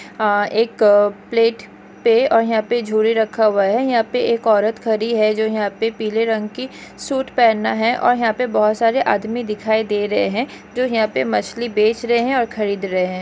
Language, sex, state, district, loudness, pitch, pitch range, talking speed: Hindi, female, Chhattisgarh, Rajnandgaon, -18 LUFS, 225 Hz, 215-235 Hz, 210 wpm